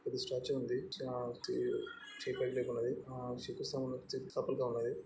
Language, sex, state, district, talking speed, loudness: Telugu, male, Andhra Pradesh, Srikakulam, 180 wpm, -40 LUFS